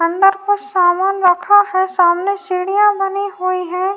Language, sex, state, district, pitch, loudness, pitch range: Hindi, female, Uttar Pradesh, Jyotiba Phule Nagar, 380 Hz, -15 LUFS, 365-400 Hz